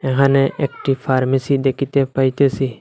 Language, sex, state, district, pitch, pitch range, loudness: Bengali, male, Assam, Hailakandi, 135 Hz, 130-140 Hz, -17 LUFS